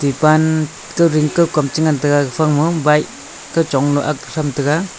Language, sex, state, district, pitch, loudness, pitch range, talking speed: Wancho, male, Arunachal Pradesh, Longding, 150 Hz, -16 LUFS, 145-160 Hz, 145 wpm